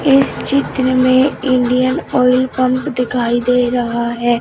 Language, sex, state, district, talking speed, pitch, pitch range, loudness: Hindi, female, Uttar Pradesh, Shamli, 135 wpm, 255 Hz, 245-260 Hz, -15 LUFS